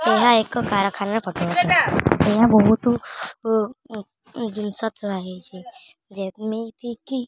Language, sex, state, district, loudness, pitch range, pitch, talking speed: Odia, female, Odisha, Khordha, -20 LUFS, 200-235 Hz, 220 Hz, 115 wpm